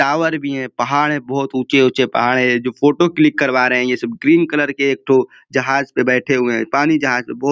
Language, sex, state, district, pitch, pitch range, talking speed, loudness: Hindi, male, Uttar Pradesh, Ghazipur, 135 Hz, 125-145 Hz, 265 wpm, -16 LUFS